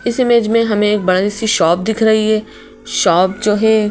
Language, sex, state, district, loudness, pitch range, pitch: Hindi, female, Madhya Pradesh, Bhopal, -14 LUFS, 205-220 Hz, 215 Hz